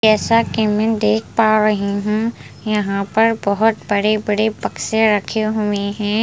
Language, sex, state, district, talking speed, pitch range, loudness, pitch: Hindi, female, Punjab, Pathankot, 155 wpm, 210-220 Hz, -17 LUFS, 215 Hz